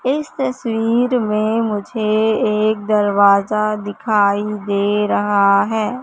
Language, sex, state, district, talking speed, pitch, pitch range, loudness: Hindi, female, Madhya Pradesh, Katni, 100 wpm, 215 Hz, 205-225 Hz, -17 LUFS